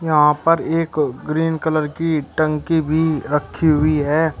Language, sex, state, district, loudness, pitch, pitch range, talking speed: Hindi, male, Uttar Pradesh, Shamli, -18 LUFS, 155 Hz, 150-160 Hz, 150 wpm